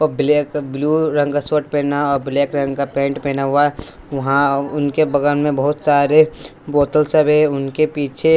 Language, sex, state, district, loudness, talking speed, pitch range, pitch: Hindi, male, Bihar, West Champaran, -17 LUFS, 170 wpm, 140-150 Hz, 145 Hz